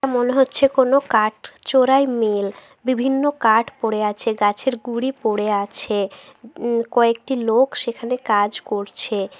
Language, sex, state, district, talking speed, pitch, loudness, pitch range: Bengali, female, West Bengal, Jhargram, 135 wpm, 235 Hz, -20 LUFS, 215-260 Hz